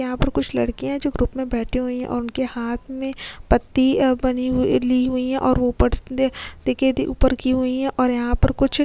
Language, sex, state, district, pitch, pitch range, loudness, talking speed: Hindi, female, Chhattisgarh, Sukma, 255 Hz, 250-265 Hz, -21 LUFS, 245 wpm